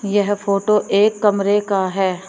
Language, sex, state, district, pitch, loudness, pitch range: Hindi, female, Uttar Pradesh, Shamli, 200 Hz, -17 LUFS, 195-205 Hz